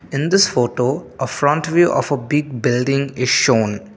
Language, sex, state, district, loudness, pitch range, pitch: English, male, Assam, Kamrup Metropolitan, -17 LUFS, 125-150 Hz, 135 Hz